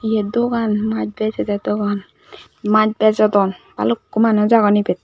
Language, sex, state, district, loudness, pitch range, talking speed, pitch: Chakma, female, Tripura, Dhalai, -17 LUFS, 205-220 Hz, 130 wpm, 215 Hz